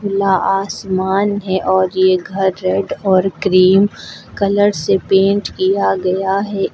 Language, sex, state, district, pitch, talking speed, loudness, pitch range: Hindi, female, Uttar Pradesh, Lucknow, 190 Hz, 135 wpm, -15 LUFS, 185-195 Hz